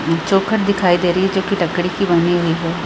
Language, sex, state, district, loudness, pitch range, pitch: Hindi, female, Chhattisgarh, Raigarh, -16 LUFS, 170-195 Hz, 180 Hz